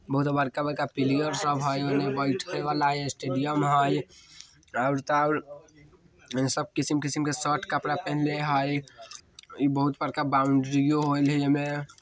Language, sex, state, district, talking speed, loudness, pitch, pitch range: Maithili, male, Bihar, Muzaffarpur, 130 wpm, -27 LUFS, 145 Hz, 140-150 Hz